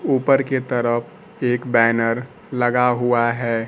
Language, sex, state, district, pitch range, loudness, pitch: Hindi, male, Bihar, Kaimur, 120-125 Hz, -19 LUFS, 120 Hz